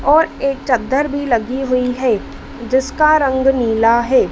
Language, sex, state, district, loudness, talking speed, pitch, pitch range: Hindi, female, Madhya Pradesh, Dhar, -16 LUFS, 150 wpm, 260 Hz, 250-280 Hz